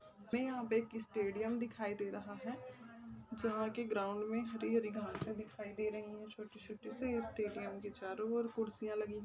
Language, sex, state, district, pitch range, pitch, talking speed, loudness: Hindi, female, Maharashtra, Nagpur, 210-230 Hz, 215 Hz, 180 wpm, -41 LUFS